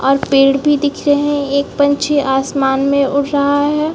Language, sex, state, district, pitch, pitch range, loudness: Hindi, female, Chhattisgarh, Bastar, 285 Hz, 275-290 Hz, -14 LUFS